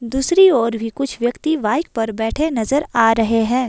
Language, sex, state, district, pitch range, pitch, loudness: Hindi, female, Himachal Pradesh, Shimla, 225-290 Hz, 240 Hz, -17 LUFS